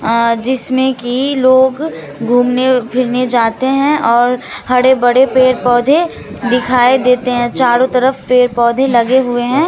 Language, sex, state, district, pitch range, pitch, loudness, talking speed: Hindi, female, Bihar, Katihar, 245-260 Hz, 250 Hz, -12 LUFS, 140 wpm